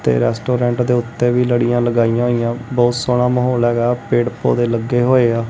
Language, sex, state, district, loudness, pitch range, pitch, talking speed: Punjabi, male, Punjab, Kapurthala, -16 LUFS, 120-125 Hz, 120 Hz, 175 wpm